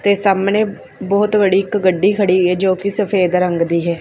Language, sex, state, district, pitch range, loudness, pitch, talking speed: Punjabi, female, Punjab, Fazilka, 180-200 Hz, -15 LUFS, 195 Hz, 210 wpm